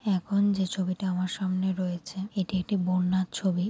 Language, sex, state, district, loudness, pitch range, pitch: Bengali, female, West Bengal, Jalpaiguri, -28 LUFS, 185-195 Hz, 190 Hz